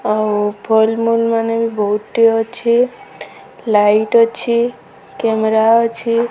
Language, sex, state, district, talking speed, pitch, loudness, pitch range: Odia, female, Odisha, Sambalpur, 85 wpm, 230 Hz, -15 LUFS, 220-230 Hz